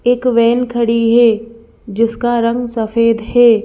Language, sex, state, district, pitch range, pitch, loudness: Hindi, female, Madhya Pradesh, Bhopal, 230-240 Hz, 230 Hz, -13 LUFS